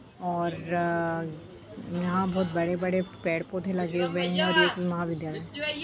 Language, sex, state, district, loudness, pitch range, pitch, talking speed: Bhojpuri, female, Bihar, Saran, -28 LUFS, 170-185 Hz, 175 Hz, 125 wpm